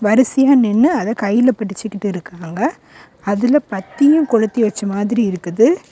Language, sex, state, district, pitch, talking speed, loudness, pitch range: Tamil, female, Tamil Nadu, Kanyakumari, 220 Hz, 120 wpm, -16 LUFS, 200-255 Hz